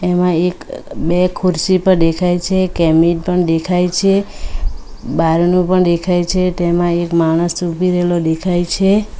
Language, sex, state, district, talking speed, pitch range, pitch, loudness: Gujarati, female, Gujarat, Valsad, 145 wpm, 170-180 Hz, 175 Hz, -14 LUFS